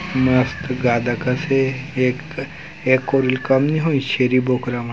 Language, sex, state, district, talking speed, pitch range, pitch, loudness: Chhattisgarhi, male, Chhattisgarh, Raigarh, 180 wpm, 125-135 Hz, 130 Hz, -19 LUFS